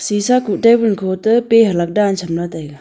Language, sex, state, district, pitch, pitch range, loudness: Wancho, female, Arunachal Pradesh, Longding, 205 Hz, 175-230 Hz, -15 LUFS